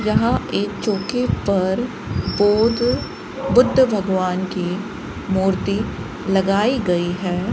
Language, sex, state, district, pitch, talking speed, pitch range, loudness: Hindi, female, Rajasthan, Bikaner, 195 Hz, 95 wpm, 185-225 Hz, -20 LUFS